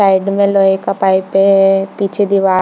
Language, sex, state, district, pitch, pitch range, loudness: Hindi, female, Chhattisgarh, Bilaspur, 195 Hz, 190-200 Hz, -12 LUFS